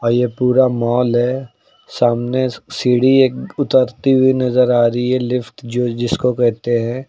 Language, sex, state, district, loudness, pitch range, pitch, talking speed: Hindi, male, Uttar Pradesh, Lucknow, -16 LUFS, 120-130 Hz, 125 Hz, 145 wpm